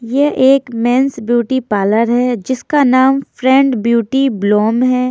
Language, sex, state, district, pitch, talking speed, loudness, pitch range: Hindi, female, Himachal Pradesh, Shimla, 250 Hz, 140 wpm, -13 LUFS, 235-265 Hz